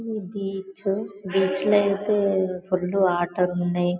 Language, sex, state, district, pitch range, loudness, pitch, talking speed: Telugu, male, Telangana, Karimnagar, 180-200 Hz, -24 LUFS, 195 Hz, 105 wpm